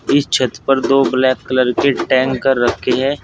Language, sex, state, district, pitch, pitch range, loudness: Hindi, male, Uttar Pradesh, Saharanpur, 130 Hz, 125-135 Hz, -15 LUFS